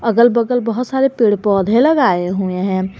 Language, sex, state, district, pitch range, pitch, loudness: Hindi, female, Jharkhand, Garhwa, 190-245 Hz, 230 Hz, -15 LUFS